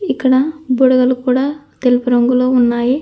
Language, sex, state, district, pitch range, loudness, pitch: Telugu, female, Andhra Pradesh, Anantapur, 250-270 Hz, -14 LUFS, 255 Hz